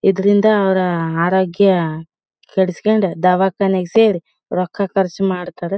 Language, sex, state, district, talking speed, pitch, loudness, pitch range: Kannada, female, Karnataka, Bellary, 95 wpm, 190 Hz, -16 LUFS, 180-200 Hz